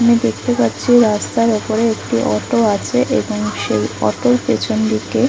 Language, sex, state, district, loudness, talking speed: Bengali, female, West Bengal, Kolkata, -16 LUFS, 160 wpm